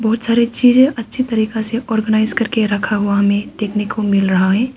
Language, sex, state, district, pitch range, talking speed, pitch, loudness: Hindi, female, Arunachal Pradesh, Papum Pare, 210-235 Hz, 200 wpm, 220 Hz, -15 LUFS